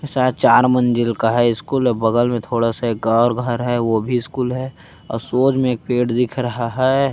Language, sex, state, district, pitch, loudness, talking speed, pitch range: Chhattisgarhi, male, Chhattisgarh, Kabirdham, 120 Hz, -18 LUFS, 225 wpm, 115-130 Hz